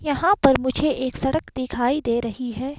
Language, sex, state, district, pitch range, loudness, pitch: Hindi, female, Himachal Pradesh, Shimla, 250-290 Hz, -22 LUFS, 260 Hz